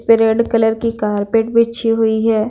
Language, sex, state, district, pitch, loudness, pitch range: Hindi, female, Bihar, Patna, 225 Hz, -15 LUFS, 220-230 Hz